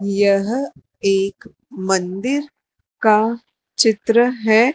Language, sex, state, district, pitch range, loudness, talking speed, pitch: Hindi, female, Madhya Pradesh, Dhar, 200-240 Hz, -18 LUFS, 75 wpm, 220 Hz